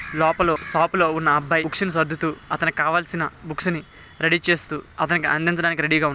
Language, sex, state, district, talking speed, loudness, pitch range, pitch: Telugu, male, Telangana, Nalgonda, 175 wpm, -21 LUFS, 155-170 Hz, 160 Hz